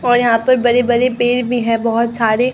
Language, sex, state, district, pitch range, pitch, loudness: Hindi, female, Bihar, Katihar, 230-245 Hz, 240 Hz, -14 LUFS